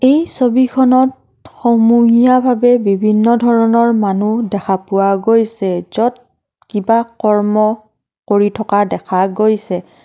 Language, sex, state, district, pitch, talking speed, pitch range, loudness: Assamese, female, Assam, Kamrup Metropolitan, 225 Hz, 95 wpm, 205-240 Hz, -13 LUFS